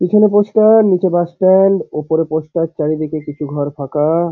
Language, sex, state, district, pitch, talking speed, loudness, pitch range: Bengali, male, West Bengal, Paschim Medinipur, 165 Hz, 155 wpm, -14 LUFS, 150-190 Hz